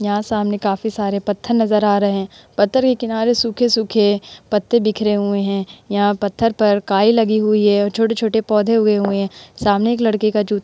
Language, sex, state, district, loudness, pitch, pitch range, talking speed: Hindi, female, Uttar Pradesh, Hamirpur, -17 LUFS, 210 Hz, 205-225 Hz, 205 wpm